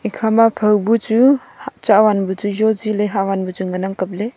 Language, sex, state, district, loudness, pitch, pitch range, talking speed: Wancho, female, Arunachal Pradesh, Longding, -16 LUFS, 210 Hz, 195-220 Hz, 220 wpm